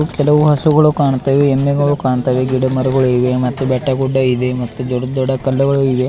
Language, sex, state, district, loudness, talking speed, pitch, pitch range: Kannada, male, Karnataka, Bidar, -14 LUFS, 160 wpm, 130 Hz, 130-140 Hz